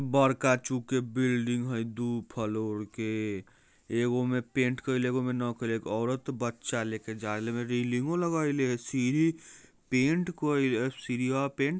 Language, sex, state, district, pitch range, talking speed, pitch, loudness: Bajjika, male, Bihar, Vaishali, 115-135 Hz, 140 wpm, 125 Hz, -30 LUFS